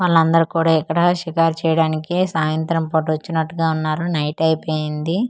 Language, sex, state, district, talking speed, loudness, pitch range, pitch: Telugu, female, Andhra Pradesh, Manyam, 135 wpm, -19 LUFS, 155-165 Hz, 160 Hz